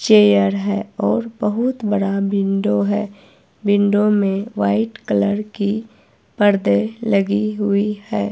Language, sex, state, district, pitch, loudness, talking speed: Hindi, female, Himachal Pradesh, Shimla, 200 Hz, -18 LUFS, 115 wpm